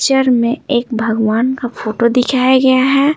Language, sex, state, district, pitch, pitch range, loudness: Hindi, female, Bihar, Patna, 250 Hz, 235-260 Hz, -14 LUFS